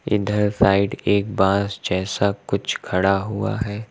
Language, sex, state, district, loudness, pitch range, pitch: Hindi, male, Uttar Pradesh, Lucknow, -21 LUFS, 95-105 Hz, 100 Hz